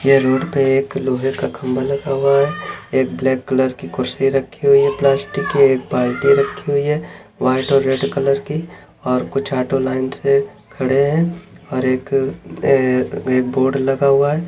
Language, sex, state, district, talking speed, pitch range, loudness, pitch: Hindi, male, Chhattisgarh, Bilaspur, 170 wpm, 130-140 Hz, -17 LUFS, 135 Hz